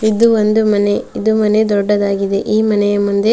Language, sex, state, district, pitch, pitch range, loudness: Kannada, female, Karnataka, Dharwad, 210 Hz, 205-220 Hz, -14 LUFS